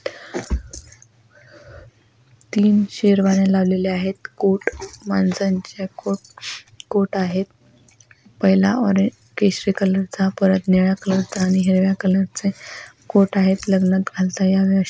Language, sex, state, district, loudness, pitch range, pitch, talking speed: Marathi, female, Maharashtra, Pune, -19 LUFS, 185-195 Hz, 190 Hz, 120 wpm